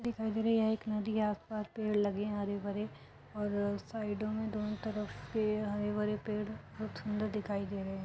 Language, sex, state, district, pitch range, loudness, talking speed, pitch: Hindi, female, Uttar Pradesh, Etah, 205-215 Hz, -36 LUFS, 215 wpm, 210 Hz